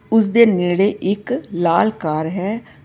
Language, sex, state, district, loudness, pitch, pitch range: Punjabi, female, Karnataka, Bangalore, -17 LUFS, 200 Hz, 175-225 Hz